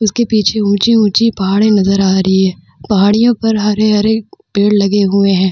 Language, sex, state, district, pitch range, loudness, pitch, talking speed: Hindi, female, Bihar, Vaishali, 195-220 Hz, -12 LUFS, 205 Hz, 165 wpm